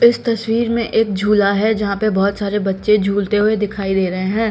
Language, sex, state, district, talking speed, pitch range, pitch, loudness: Hindi, female, Bihar, Patna, 225 wpm, 200-220 Hz, 210 Hz, -17 LUFS